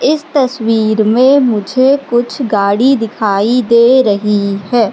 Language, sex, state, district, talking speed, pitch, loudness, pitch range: Hindi, female, Madhya Pradesh, Katni, 120 wpm, 235 Hz, -11 LUFS, 210-260 Hz